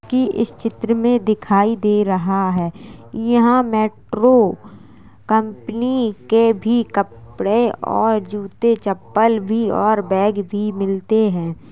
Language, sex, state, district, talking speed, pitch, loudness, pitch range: Hindi, female, Uttar Pradesh, Jalaun, 110 wpm, 215 Hz, -18 LUFS, 195-225 Hz